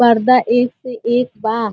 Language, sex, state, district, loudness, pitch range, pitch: Bhojpuri, female, Uttar Pradesh, Ghazipur, -16 LUFS, 230-245 Hz, 240 Hz